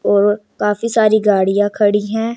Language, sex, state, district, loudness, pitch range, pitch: Hindi, female, Chandigarh, Chandigarh, -15 LUFS, 205-220 Hz, 210 Hz